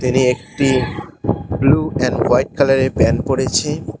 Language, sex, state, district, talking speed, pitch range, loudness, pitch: Bengali, male, West Bengal, Cooch Behar, 120 wpm, 120-140 Hz, -17 LUFS, 130 Hz